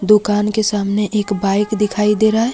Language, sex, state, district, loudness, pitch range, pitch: Hindi, female, Jharkhand, Deoghar, -16 LUFS, 205-210 Hz, 210 Hz